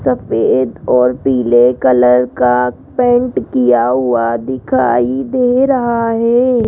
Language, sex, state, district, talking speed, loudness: Hindi, female, Rajasthan, Jaipur, 110 wpm, -13 LUFS